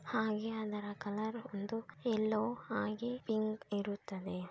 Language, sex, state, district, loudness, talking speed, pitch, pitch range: Kannada, female, Karnataka, Bellary, -39 LUFS, 105 wpm, 215 Hz, 205-225 Hz